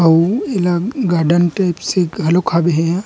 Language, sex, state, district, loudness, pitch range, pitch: Chhattisgarhi, male, Chhattisgarh, Rajnandgaon, -15 LUFS, 170-185 Hz, 175 Hz